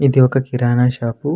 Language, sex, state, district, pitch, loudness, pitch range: Telugu, male, Andhra Pradesh, Anantapur, 125 Hz, -16 LUFS, 120-135 Hz